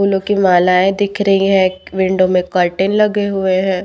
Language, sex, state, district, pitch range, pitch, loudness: Hindi, female, Punjab, Pathankot, 185-200 Hz, 190 Hz, -14 LUFS